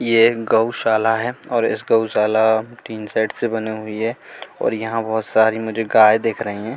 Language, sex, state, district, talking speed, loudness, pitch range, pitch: Hindi, male, Bihar, Katihar, 185 wpm, -18 LUFS, 110-115 Hz, 110 Hz